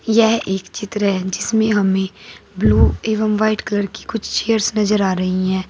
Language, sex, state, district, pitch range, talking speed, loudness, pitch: Hindi, female, Uttar Pradesh, Saharanpur, 190-220 Hz, 180 wpm, -18 LUFS, 210 Hz